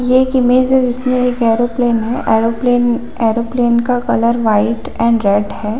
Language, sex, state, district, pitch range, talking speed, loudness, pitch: Hindi, female, Chhattisgarh, Bilaspur, 230-250 Hz, 165 wpm, -14 LUFS, 240 Hz